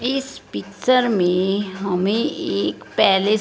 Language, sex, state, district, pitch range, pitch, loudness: Hindi, female, Punjab, Fazilka, 175-220 Hz, 195 Hz, -20 LUFS